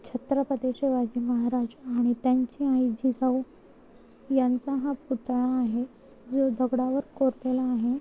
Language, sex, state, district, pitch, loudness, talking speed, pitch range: Marathi, female, Maharashtra, Chandrapur, 255 Hz, -27 LUFS, 110 wpm, 250-265 Hz